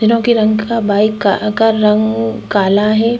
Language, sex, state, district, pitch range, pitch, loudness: Hindi, female, Chhattisgarh, Korba, 210-225 Hz, 215 Hz, -13 LUFS